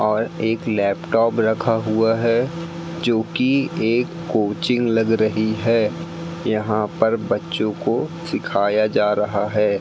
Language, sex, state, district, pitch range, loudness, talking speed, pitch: Hindi, male, Madhya Pradesh, Katni, 105-120 Hz, -20 LUFS, 130 wpm, 110 Hz